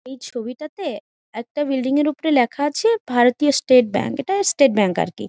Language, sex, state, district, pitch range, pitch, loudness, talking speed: Bengali, female, West Bengal, Jhargram, 240-295 Hz, 270 Hz, -19 LUFS, 160 wpm